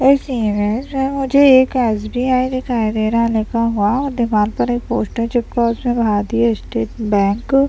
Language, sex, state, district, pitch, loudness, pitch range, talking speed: Hindi, male, Bihar, Madhepura, 235 Hz, -17 LUFS, 220-255 Hz, 195 wpm